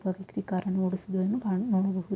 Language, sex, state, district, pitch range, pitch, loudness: Kannada, female, Karnataka, Mysore, 185-195 Hz, 190 Hz, -29 LUFS